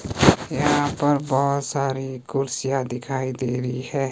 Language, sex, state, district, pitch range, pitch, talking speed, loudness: Hindi, male, Himachal Pradesh, Shimla, 130-140 Hz, 135 Hz, 130 wpm, -23 LUFS